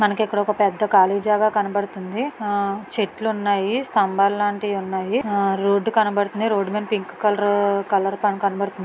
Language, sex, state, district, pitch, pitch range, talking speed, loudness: Telugu, female, Telangana, Karimnagar, 205 Hz, 200-210 Hz, 155 wpm, -21 LUFS